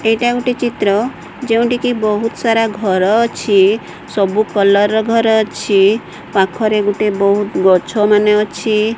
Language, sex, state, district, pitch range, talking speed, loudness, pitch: Odia, female, Odisha, Sambalpur, 205-225 Hz, 135 wpm, -14 LUFS, 215 Hz